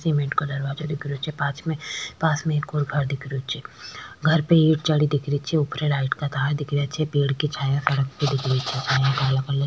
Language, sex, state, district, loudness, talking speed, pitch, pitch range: Rajasthani, female, Rajasthan, Nagaur, -23 LUFS, 235 wpm, 145 Hz, 140-155 Hz